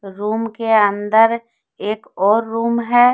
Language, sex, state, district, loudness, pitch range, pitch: Hindi, female, Jharkhand, Deoghar, -17 LUFS, 210-230 Hz, 225 Hz